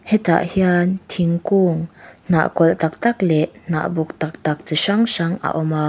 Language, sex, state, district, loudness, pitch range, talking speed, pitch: Mizo, female, Mizoram, Aizawl, -18 LUFS, 160-185 Hz, 185 wpm, 170 Hz